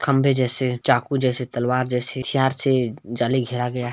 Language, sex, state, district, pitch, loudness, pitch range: Hindi, male, Chhattisgarh, Balrampur, 130 Hz, -22 LUFS, 125-135 Hz